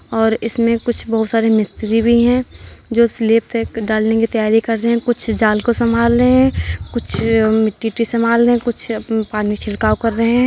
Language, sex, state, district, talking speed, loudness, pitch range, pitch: Hindi, male, Uttar Pradesh, Varanasi, 200 wpm, -16 LUFS, 220-235 Hz, 225 Hz